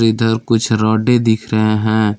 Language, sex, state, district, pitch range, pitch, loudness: Hindi, male, Jharkhand, Palamu, 110-115 Hz, 110 Hz, -15 LUFS